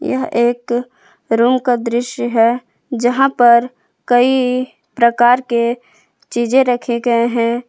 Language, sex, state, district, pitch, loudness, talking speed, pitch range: Hindi, female, Jharkhand, Palamu, 245 Hz, -15 LUFS, 115 wpm, 235-255 Hz